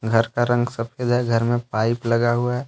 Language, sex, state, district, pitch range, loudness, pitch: Hindi, male, Jharkhand, Deoghar, 115-120 Hz, -21 LUFS, 120 Hz